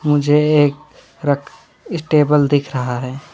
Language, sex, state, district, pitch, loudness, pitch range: Hindi, male, West Bengal, Alipurduar, 145 Hz, -17 LUFS, 140-150 Hz